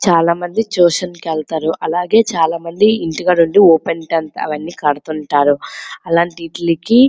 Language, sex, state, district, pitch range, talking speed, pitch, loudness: Telugu, female, Andhra Pradesh, Srikakulam, 160-180 Hz, 160 wpm, 170 Hz, -15 LUFS